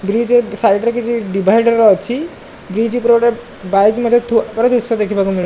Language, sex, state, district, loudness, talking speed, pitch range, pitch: Odia, male, Odisha, Malkangiri, -14 LUFS, 200 wpm, 205-240 Hz, 230 Hz